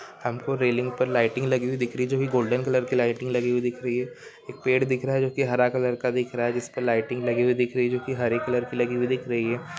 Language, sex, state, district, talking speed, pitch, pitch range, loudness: Hindi, male, Rajasthan, Nagaur, 320 wpm, 125 Hz, 120-130 Hz, -25 LUFS